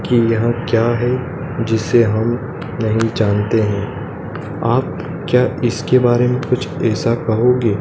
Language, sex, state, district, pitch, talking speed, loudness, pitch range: Hindi, male, Madhya Pradesh, Dhar, 120 Hz, 130 wpm, -17 LUFS, 110-125 Hz